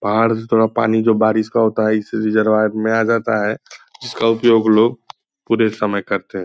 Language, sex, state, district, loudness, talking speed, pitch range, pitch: Hindi, male, Bihar, Purnia, -16 LUFS, 205 wpm, 110-115 Hz, 110 Hz